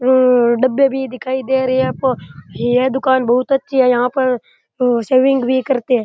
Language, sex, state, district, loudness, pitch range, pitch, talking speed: Rajasthani, male, Rajasthan, Churu, -15 LUFS, 245-265 Hz, 260 Hz, 190 wpm